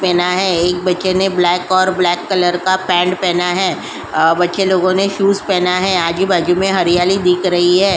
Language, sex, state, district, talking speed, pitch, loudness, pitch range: Hindi, female, Uttar Pradesh, Jyotiba Phule Nagar, 190 wpm, 180 Hz, -14 LUFS, 175-190 Hz